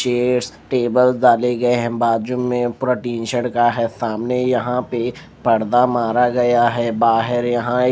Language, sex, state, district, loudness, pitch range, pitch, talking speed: Hindi, male, Maharashtra, Mumbai Suburban, -18 LUFS, 120-125 Hz, 120 Hz, 165 wpm